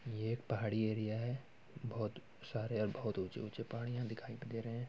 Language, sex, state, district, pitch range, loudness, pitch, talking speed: Hindi, male, Bihar, Muzaffarpur, 110-120 Hz, -41 LUFS, 115 Hz, 185 wpm